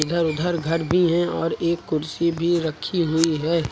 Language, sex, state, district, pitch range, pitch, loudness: Hindi, male, Uttar Pradesh, Lucknow, 160-170 Hz, 170 Hz, -22 LUFS